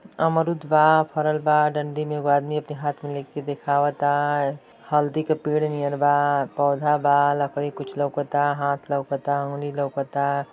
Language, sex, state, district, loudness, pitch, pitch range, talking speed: Bhojpuri, female, Uttar Pradesh, Ghazipur, -23 LUFS, 145 Hz, 140-150 Hz, 160 wpm